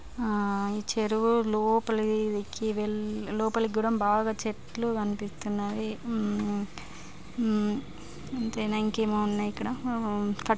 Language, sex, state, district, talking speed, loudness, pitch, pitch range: Telugu, female, Andhra Pradesh, Guntur, 70 wpm, -29 LUFS, 215 Hz, 210-225 Hz